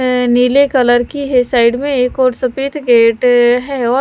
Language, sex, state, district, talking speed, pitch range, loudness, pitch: Hindi, female, Himachal Pradesh, Shimla, 165 wpm, 245-265 Hz, -12 LUFS, 250 Hz